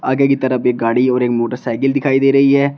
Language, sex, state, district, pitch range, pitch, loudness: Hindi, male, Uttar Pradesh, Shamli, 125-140 Hz, 130 Hz, -15 LUFS